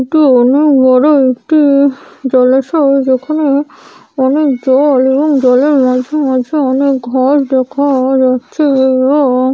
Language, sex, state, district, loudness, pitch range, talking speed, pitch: Bengali, female, West Bengal, Paschim Medinipur, -10 LUFS, 260-285 Hz, 100 wpm, 265 Hz